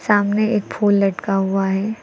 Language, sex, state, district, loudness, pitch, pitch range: Hindi, female, Uttar Pradesh, Lucknow, -18 LUFS, 200 Hz, 195-210 Hz